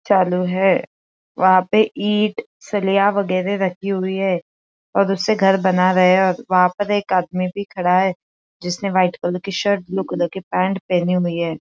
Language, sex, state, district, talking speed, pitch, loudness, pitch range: Hindi, female, Maharashtra, Aurangabad, 185 wpm, 185 Hz, -18 LUFS, 180-195 Hz